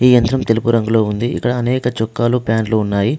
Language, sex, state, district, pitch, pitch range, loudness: Telugu, male, Telangana, Adilabad, 115 Hz, 110-125 Hz, -16 LUFS